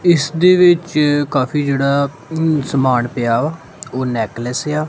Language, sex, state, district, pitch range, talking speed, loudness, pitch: Punjabi, male, Punjab, Kapurthala, 130-160 Hz, 125 wpm, -16 LUFS, 145 Hz